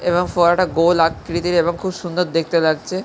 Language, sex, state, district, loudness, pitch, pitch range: Bengali, male, West Bengal, Jhargram, -18 LUFS, 175 Hz, 165-180 Hz